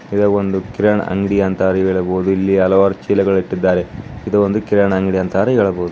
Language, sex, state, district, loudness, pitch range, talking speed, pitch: Kannada, male, Karnataka, Bijapur, -16 LUFS, 95-100 Hz, 160 wpm, 95 Hz